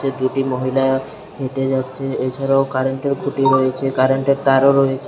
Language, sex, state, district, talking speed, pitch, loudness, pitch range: Bengali, male, Tripura, Unakoti, 130 wpm, 135 Hz, -18 LUFS, 130-135 Hz